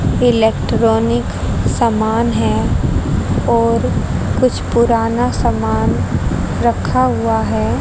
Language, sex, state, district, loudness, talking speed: Hindi, female, Haryana, Charkhi Dadri, -15 LUFS, 75 wpm